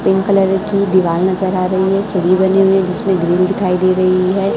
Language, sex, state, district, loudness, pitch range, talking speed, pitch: Hindi, male, Chhattisgarh, Raipur, -14 LUFS, 185-195 Hz, 235 wpm, 190 Hz